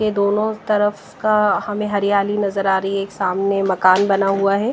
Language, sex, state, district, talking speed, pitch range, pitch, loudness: Hindi, female, Bihar, West Champaran, 205 wpm, 195-210 Hz, 200 Hz, -18 LUFS